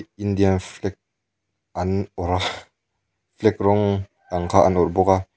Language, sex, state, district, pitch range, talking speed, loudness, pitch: Mizo, male, Mizoram, Aizawl, 95-100 Hz, 145 wpm, -21 LUFS, 100 Hz